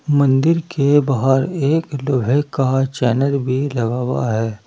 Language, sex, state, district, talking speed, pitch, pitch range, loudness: Hindi, male, Uttar Pradesh, Saharanpur, 140 wpm, 135 Hz, 125-145 Hz, -17 LUFS